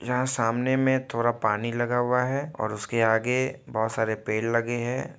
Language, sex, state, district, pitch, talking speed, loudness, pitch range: Hindi, male, Bihar, Muzaffarpur, 120 Hz, 185 wpm, -26 LUFS, 115-130 Hz